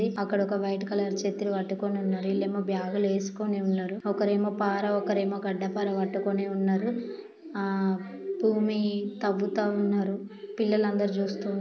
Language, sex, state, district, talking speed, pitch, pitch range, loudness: Telugu, female, Andhra Pradesh, Srikakulam, 135 wpm, 200 Hz, 195-205 Hz, -28 LUFS